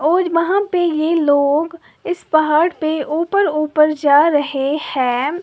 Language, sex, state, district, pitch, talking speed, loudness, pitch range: Hindi, female, Uttar Pradesh, Lalitpur, 310 Hz, 145 wpm, -16 LUFS, 290-335 Hz